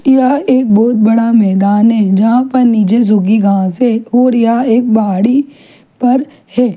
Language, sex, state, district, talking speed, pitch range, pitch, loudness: Hindi, female, Chhattisgarh, Jashpur, 150 wpm, 215-250 Hz, 230 Hz, -11 LUFS